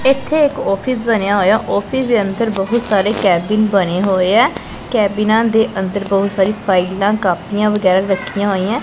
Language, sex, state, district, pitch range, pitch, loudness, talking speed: Punjabi, female, Punjab, Pathankot, 195-225 Hz, 200 Hz, -15 LUFS, 165 wpm